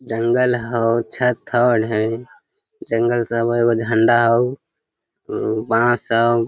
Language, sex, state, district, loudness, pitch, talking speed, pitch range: Hindi, male, Jharkhand, Sahebganj, -18 LUFS, 120 Hz, 140 wpm, 115-120 Hz